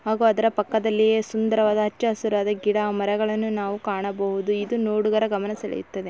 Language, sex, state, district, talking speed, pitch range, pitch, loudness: Kannada, female, Karnataka, Belgaum, 140 wpm, 205-220 Hz, 215 Hz, -23 LUFS